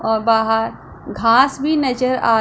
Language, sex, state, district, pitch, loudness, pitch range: Hindi, female, Punjab, Pathankot, 230 Hz, -17 LUFS, 225-265 Hz